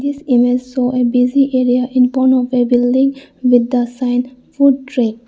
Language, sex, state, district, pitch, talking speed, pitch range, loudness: English, female, Arunachal Pradesh, Lower Dibang Valley, 250 Hz, 180 wpm, 245-260 Hz, -14 LUFS